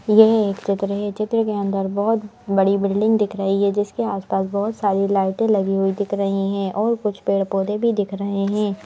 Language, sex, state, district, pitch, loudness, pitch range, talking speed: Hindi, female, Madhya Pradesh, Bhopal, 200 Hz, -20 LUFS, 195-210 Hz, 210 wpm